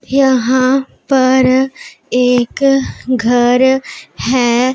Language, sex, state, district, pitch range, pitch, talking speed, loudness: Hindi, female, Punjab, Pathankot, 250-265 Hz, 255 Hz, 65 wpm, -13 LUFS